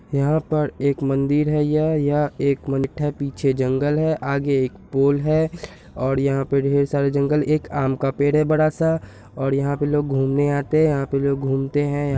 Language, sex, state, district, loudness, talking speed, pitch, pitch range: Hindi, male, Bihar, Purnia, -21 LUFS, 190 wpm, 140 Hz, 135-150 Hz